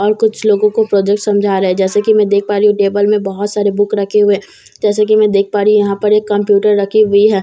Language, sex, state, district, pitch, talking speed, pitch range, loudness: Hindi, female, Bihar, Katihar, 205 Hz, 325 wpm, 200-210 Hz, -12 LUFS